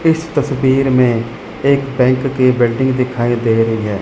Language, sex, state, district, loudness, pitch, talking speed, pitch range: Hindi, male, Chandigarh, Chandigarh, -14 LUFS, 125 Hz, 165 wpm, 120-135 Hz